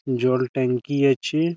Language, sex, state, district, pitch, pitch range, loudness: Bengali, male, West Bengal, Malda, 130 Hz, 125-145 Hz, -22 LUFS